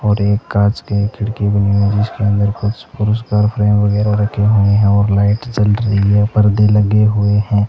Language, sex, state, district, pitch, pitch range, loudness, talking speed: Hindi, male, Rajasthan, Bikaner, 105 Hz, 100-105 Hz, -14 LUFS, 205 wpm